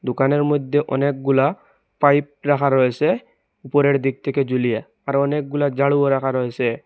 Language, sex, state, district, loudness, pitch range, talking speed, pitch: Bengali, male, Assam, Hailakandi, -19 LUFS, 135-145 Hz, 130 wpm, 140 Hz